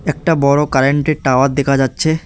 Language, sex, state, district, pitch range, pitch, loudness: Bengali, male, West Bengal, Alipurduar, 135-155 Hz, 140 Hz, -14 LUFS